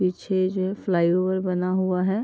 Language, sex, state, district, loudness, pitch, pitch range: Hindi, female, Bihar, East Champaran, -23 LUFS, 185 Hz, 180-190 Hz